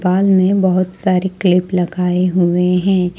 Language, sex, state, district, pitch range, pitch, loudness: Hindi, female, Jharkhand, Ranchi, 180-190 Hz, 185 Hz, -14 LUFS